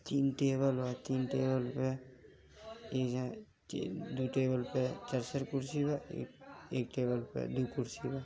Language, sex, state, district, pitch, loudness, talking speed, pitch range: Hindi, male, Uttar Pradesh, Gorakhpur, 130 Hz, -36 LUFS, 155 wpm, 130-135 Hz